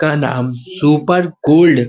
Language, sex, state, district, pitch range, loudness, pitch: Hindi, male, Uttar Pradesh, Budaun, 125-170 Hz, -14 LUFS, 150 Hz